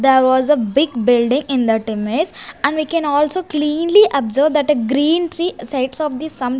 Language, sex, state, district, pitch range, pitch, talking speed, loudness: English, female, Punjab, Kapurthala, 255-310 Hz, 285 Hz, 210 wpm, -16 LUFS